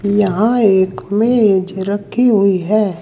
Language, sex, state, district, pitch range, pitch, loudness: Hindi, male, Uttar Pradesh, Saharanpur, 190-215 Hz, 205 Hz, -14 LUFS